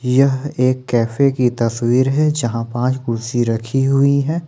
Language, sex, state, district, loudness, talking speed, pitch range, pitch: Hindi, male, Jharkhand, Ranchi, -17 LUFS, 160 wpm, 120-135 Hz, 130 Hz